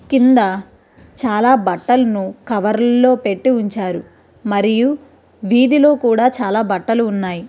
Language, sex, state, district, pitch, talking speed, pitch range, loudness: Telugu, female, Andhra Pradesh, Krishna, 230 Hz, 105 wpm, 200-255 Hz, -15 LUFS